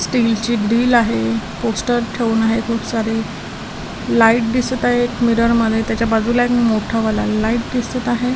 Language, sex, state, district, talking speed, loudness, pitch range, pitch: Marathi, female, Maharashtra, Washim, 165 wpm, -17 LUFS, 225-240 Hz, 230 Hz